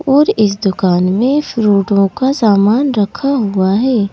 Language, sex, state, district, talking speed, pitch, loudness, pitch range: Hindi, female, Madhya Pradesh, Bhopal, 145 wpm, 210 Hz, -13 LUFS, 200-260 Hz